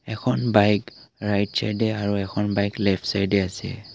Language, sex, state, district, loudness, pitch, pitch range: Assamese, male, Assam, Kamrup Metropolitan, -23 LUFS, 105 Hz, 100-110 Hz